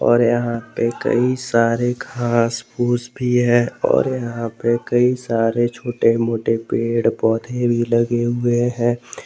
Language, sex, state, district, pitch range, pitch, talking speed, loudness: Hindi, male, Jharkhand, Garhwa, 115-120 Hz, 120 Hz, 145 wpm, -19 LUFS